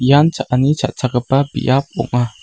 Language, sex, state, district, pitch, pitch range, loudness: Garo, male, Meghalaya, West Garo Hills, 130 Hz, 125-140 Hz, -16 LUFS